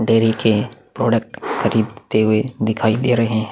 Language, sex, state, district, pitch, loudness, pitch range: Hindi, male, Chhattisgarh, Korba, 110 Hz, -18 LUFS, 110-115 Hz